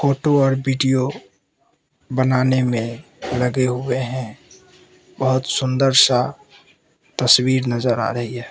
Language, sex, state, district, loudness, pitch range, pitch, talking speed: Hindi, male, Mizoram, Aizawl, -19 LUFS, 125-135 Hz, 130 Hz, 115 wpm